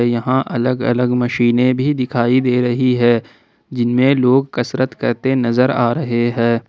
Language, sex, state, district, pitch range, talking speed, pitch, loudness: Hindi, male, Jharkhand, Ranchi, 120-130 Hz, 155 wpm, 125 Hz, -16 LUFS